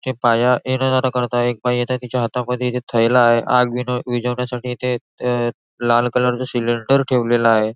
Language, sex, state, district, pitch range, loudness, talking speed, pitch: Marathi, male, Maharashtra, Nagpur, 120-125 Hz, -18 LUFS, 185 wpm, 125 Hz